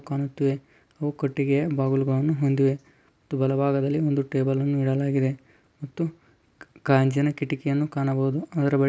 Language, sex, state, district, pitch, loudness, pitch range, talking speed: Kannada, male, Karnataka, Dharwad, 140 Hz, -25 LUFS, 135-145 Hz, 115 wpm